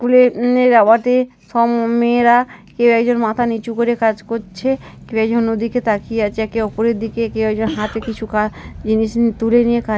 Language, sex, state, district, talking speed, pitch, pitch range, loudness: Bengali, female, West Bengal, North 24 Parganas, 155 wpm, 230 Hz, 220-240 Hz, -16 LUFS